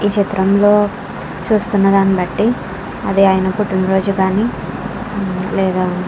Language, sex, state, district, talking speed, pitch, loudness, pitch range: Telugu, female, Andhra Pradesh, Krishna, 120 wpm, 195 Hz, -16 LUFS, 190-205 Hz